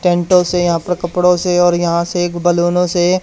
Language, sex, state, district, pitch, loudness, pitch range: Hindi, male, Haryana, Charkhi Dadri, 175 Hz, -14 LUFS, 175-180 Hz